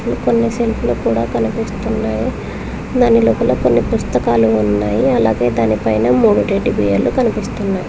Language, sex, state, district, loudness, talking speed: Telugu, female, Telangana, Mahabubabad, -15 LUFS, 115 wpm